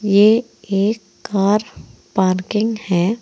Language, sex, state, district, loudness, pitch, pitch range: Hindi, female, Uttar Pradesh, Saharanpur, -18 LUFS, 205 Hz, 190-215 Hz